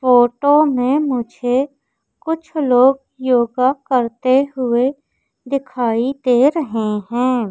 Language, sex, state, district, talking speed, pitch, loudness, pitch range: Hindi, female, Madhya Pradesh, Umaria, 95 wpm, 255 Hz, -17 LUFS, 245-275 Hz